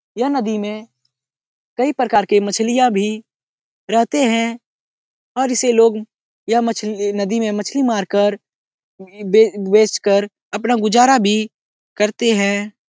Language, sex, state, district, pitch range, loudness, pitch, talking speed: Hindi, male, Bihar, Araria, 205-235 Hz, -17 LUFS, 215 Hz, 125 wpm